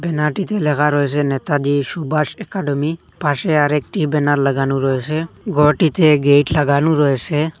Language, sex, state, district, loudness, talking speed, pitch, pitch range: Bengali, male, Assam, Hailakandi, -17 LUFS, 120 wpm, 150 Hz, 145-160 Hz